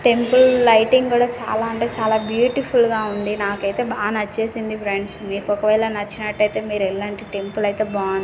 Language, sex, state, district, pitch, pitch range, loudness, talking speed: Telugu, female, Telangana, Karimnagar, 215 Hz, 205-230 Hz, -19 LUFS, 155 wpm